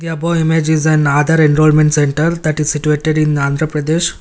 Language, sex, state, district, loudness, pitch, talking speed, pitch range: English, male, Karnataka, Bangalore, -13 LUFS, 155 Hz, 200 wpm, 150-160 Hz